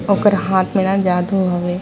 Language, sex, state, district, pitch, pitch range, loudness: Surgujia, female, Chhattisgarh, Sarguja, 190 Hz, 180-195 Hz, -17 LUFS